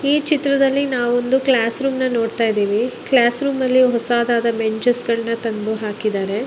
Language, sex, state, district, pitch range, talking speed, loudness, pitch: Kannada, female, Karnataka, Raichur, 225-260 Hz, 160 wpm, -18 LUFS, 240 Hz